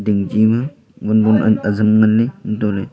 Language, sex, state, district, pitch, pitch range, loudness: Wancho, male, Arunachal Pradesh, Longding, 110 Hz, 105-110 Hz, -15 LUFS